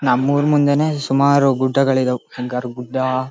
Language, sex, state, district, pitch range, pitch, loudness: Kannada, male, Karnataka, Shimoga, 125-140 Hz, 135 Hz, -17 LUFS